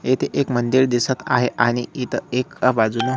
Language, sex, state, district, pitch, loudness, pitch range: Marathi, male, Maharashtra, Solapur, 125 Hz, -20 LUFS, 120-130 Hz